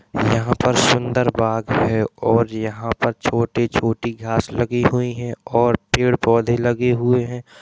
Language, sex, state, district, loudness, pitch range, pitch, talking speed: Hindi, male, Uttar Pradesh, Jalaun, -19 LUFS, 115-125 Hz, 120 Hz, 150 wpm